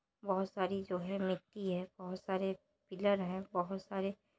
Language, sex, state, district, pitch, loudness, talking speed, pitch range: Hindi, male, Uttar Pradesh, Jalaun, 190 Hz, -38 LUFS, 165 wpm, 185-195 Hz